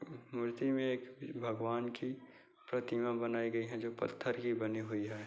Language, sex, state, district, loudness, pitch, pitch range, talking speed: Hindi, male, Bihar, Bhagalpur, -39 LUFS, 120 Hz, 115-125 Hz, 170 wpm